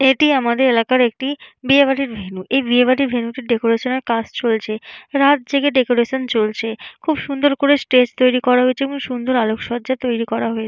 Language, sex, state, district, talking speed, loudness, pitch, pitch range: Bengali, female, West Bengal, Jalpaiguri, 195 wpm, -17 LUFS, 250 Hz, 230-270 Hz